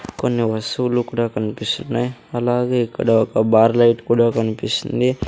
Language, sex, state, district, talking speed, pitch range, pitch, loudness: Telugu, male, Andhra Pradesh, Sri Satya Sai, 125 wpm, 110-120 Hz, 115 Hz, -19 LUFS